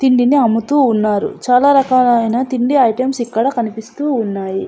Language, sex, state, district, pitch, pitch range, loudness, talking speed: Telugu, female, Andhra Pradesh, Anantapur, 245 Hz, 225-265 Hz, -14 LUFS, 140 wpm